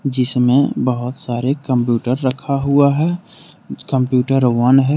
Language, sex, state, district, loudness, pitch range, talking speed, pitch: Hindi, male, Jharkhand, Deoghar, -16 LUFS, 125-140 Hz, 120 wpm, 135 Hz